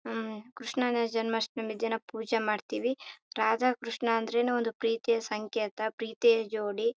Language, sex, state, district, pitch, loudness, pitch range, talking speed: Kannada, female, Karnataka, Raichur, 225 Hz, -31 LUFS, 220-235 Hz, 120 wpm